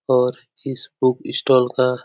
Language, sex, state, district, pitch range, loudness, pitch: Hindi, male, Uttar Pradesh, Etah, 125-130 Hz, -20 LUFS, 130 Hz